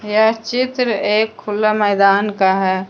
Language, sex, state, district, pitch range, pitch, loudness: Hindi, female, Jharkhand, Deoghar, 200-220 Hz, 210 Hz, -16 LUFS